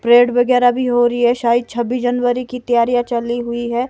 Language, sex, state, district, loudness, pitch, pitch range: Hindi, female, Himachal Pradesh, Shimla, -16 LUFS, 245 Hz, 240-245 Hz